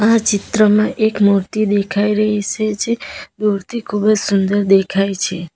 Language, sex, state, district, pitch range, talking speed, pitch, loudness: Gujarati, female, Gujarat, Valsad, 195-215 Hz, 150 wpm, 210 Hz, -16 LUFS